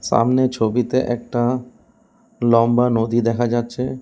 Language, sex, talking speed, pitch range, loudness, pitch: Bengali, male, 105 wpm, 120-130 Hz, -19 LUFS, 120 Hz